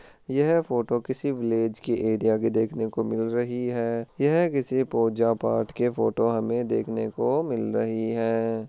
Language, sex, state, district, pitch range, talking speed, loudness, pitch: Hindi, male, Rajasthan, Churu, 115-125 Hz, 165 wpm, -25 LUFS, 115 Hz